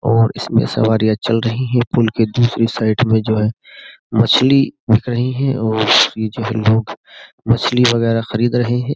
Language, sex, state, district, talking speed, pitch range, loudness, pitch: Hindi, male, Uttar Pradesh, Jyotiba Phule Nagar, 180 wpm, 110-120 Hz, -15 LUFS, 115 Hz